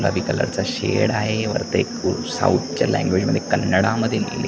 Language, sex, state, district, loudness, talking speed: Marathi, male, Maharashtra, Washim, -21 LUFS, 200 wpm